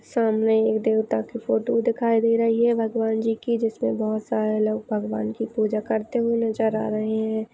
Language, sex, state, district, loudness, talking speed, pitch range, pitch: Hindi, female, Goa, North and South Goa, -23 LUFS, 190 wpm, 215-230 Hz, 220 Hz